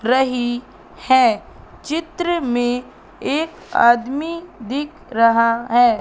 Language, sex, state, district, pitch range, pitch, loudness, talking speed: Hindi, female, Madhya Pradesh, Katni, 240-320 Hz, 255 Hz, -19 LUFS, 90 wpm